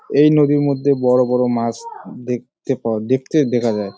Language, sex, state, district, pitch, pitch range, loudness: Bengali, male, West Bengal, Jalpaiguri, 125 Hz, 120-145 Hz, -17 LUFS